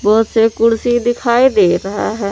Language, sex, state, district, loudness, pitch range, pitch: Hindi, female, Jharkhand, Palamu, -13 LUFS, 225-240 Hz, 230 Hz